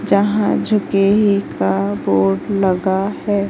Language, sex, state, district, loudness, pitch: Hindi, female, Madhya Pradesh, Katni, -17 LUFS, 195 Hz